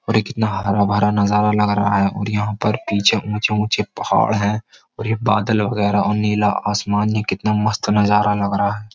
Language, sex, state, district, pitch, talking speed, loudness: Hindi, male, Uttar Pradesh, Jyotiba Phule Nagar, 105 Hz, 210 wpm, -18 LUFS